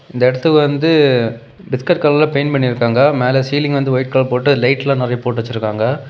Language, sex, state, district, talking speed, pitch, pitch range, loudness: Tamil, male, Tamil Nadu, Kanyakumari, 185 wpm, 135 Hz, 125-145 Hz, -15 LUFS